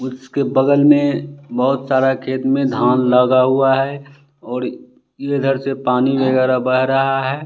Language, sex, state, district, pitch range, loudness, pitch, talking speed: Hindi, male, Bihar, West Champaran, 130-140 Hz, -16 LUFS, 135 Hz, 155 wpm